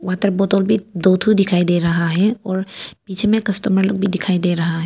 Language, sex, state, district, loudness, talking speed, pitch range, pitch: Hindi, female, Arunachal Pradesh, Papum Pare, -17 LUFS, 235 wpm, 180-200 Hz, 190 Hz